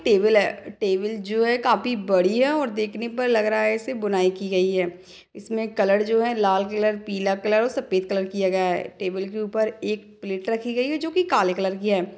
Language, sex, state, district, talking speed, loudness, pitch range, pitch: Hindi, female, Chhattisgarh, Jashpur, 230 wpm, -23 LUFS, 190-230 Hz, 210 Hz